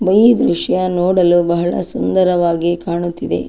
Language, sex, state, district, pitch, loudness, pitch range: Kannada, female, Karnataka, Chamarajanagar, 175 Hz, -15 LUFS, 170-185 Hz